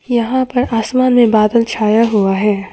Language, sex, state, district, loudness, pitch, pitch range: Hindi, female, Arunachal Pradesh, Papum Pare, -13 LUFS, 230 Hz, 210-245 Hz